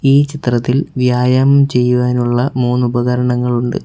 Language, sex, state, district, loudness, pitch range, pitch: Malayalam, male, Kerala, Kollam, -14 LUFS, 125-135 Hz, 125 Hz